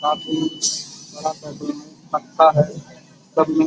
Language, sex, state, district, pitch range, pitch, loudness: Hindi, male, Uttar Pradesh, Budaun, 150-160 Hz, 155 Hz, -21 LUFS